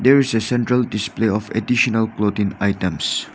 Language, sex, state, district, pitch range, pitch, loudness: English, male, Nagaland, Dimapur, 100-120 Hz, 110 Hz, -19 LUFS